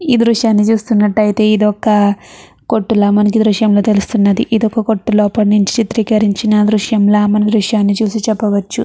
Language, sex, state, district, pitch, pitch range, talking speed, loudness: Telugu, female, Andhra Pradesh, Chittoor, 215 Hz, 205-220 Hz, 135 wpm, -12 LUFS